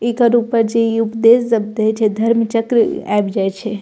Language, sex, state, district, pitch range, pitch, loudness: Maithili, female, Bihar, Purnia, 215-230 Hz, 225 Hz, -15 LUFS